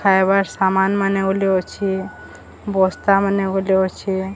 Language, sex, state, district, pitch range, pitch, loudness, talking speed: Odia, female, Odisha, Sambalpur, 190-195 Hz, 190 Hz, -18 LUFS, 125 wpm